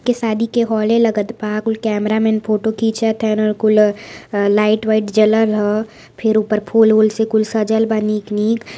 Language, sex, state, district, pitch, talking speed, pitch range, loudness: Hindi, female, Uttar Pradesh, Varanasi, 220 Hz, 185 wpm, 215-220 Hz, -16 LUFS